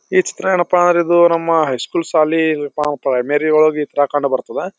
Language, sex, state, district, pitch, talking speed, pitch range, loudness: Kannada, male, Karnataka, Bijapur, 160 Hz, 165 wpm, 150-175 Hz, -15 LUFS